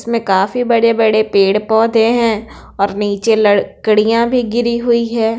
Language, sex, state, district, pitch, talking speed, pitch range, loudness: Hindi, female, Bihar, Patna, 225 Hz, 135 wpm, 210-235 Hz, -13 LUFS